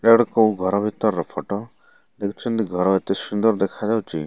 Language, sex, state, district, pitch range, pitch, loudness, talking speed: Odia, male, Odisha, Malkangiri, 95-110 Hz, 105 Hz, -21 LUFS, 185 wpm